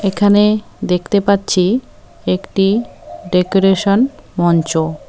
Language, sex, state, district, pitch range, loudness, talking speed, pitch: Bengali, female, West Bengal, Cooch Behar, 170-205 Hz, -15 LUFS, 70 wpm, 195 Hz